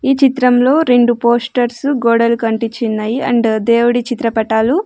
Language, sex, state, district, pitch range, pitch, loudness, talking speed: Telugu, female, Andhra Pradesh, Sri Satya Sai, 230-250 Hz, 240 Hz, -13 LUFS, 110 wpm